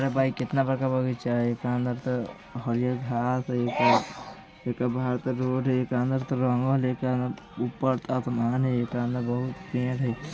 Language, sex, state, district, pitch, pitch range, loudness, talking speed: Bajjika, male, Bihar, Vaishali, 125 Hz, 120-130 Hz, -27 LUFS, 170 wpm